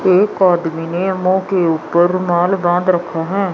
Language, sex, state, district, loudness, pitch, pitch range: Hindi, female, Chandigarh, Chandigarh, -15 LUFS, 180 Hz, 170-190 Hz